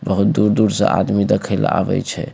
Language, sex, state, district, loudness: Maithili, male, Bihar, Supaul, -17 LUFS